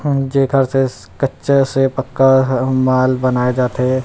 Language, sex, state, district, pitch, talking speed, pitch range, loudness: Chhattisgarhi, male, Chhattisgarh, Rajnandgaon, 130 Hz, 160 wpm, 130-135 Hz, -15 LUFS